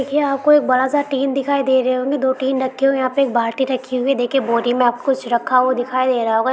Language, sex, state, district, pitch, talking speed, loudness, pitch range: Hindi, female, Bihar, Kishanganj, 260 Hz, 320 wpm, -17 LUFS, 250-275 Hz